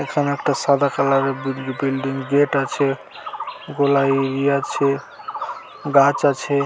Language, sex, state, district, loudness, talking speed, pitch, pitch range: Bengali, male, West Bengal, Dakshin Dinajpur, -20 LUFS, 115 wpm, 140 Hz, 135-140 Hz